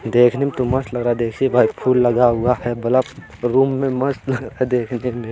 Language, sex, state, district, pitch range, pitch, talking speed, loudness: Hindi, male, Bihar, Bhagalpur, 120-130 Hz, 125 Hz, 225 wpm, -18 LUFS